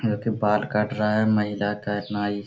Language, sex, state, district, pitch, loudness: Hindi, male, Jharkhand, Sahebganj, 105 Hz, -24 LUFS